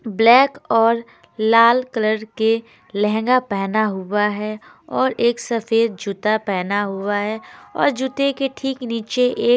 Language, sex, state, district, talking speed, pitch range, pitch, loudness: Hindi, female, Haryana, Charkhi Dadri, 140 wpm, 210-245 Hz, 225 Hz, -19 LUFS